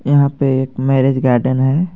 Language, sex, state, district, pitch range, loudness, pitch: Hindi, male, Jharkhand, Garhwa, 130-140 Hz, -15 LUFS, 135 Hz